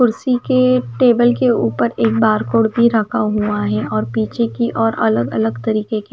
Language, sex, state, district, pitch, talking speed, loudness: Hindi, female, Himachal Pradesh, Shimla, 215 Hz, 195 wpm, -16 LUFS